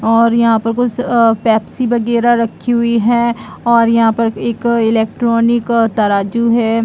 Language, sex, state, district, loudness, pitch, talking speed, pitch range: Hindi, female, Chhattisgarh, Bastar, -13 LUFS, 230 Hz, 165 wpm, 225-235 Hz